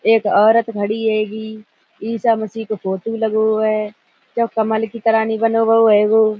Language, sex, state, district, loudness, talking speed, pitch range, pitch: Hindi, female, Uttar Pradesh, Budaun, -17 LUFS, 140 wpm, 215-225 Hz, 220 Hz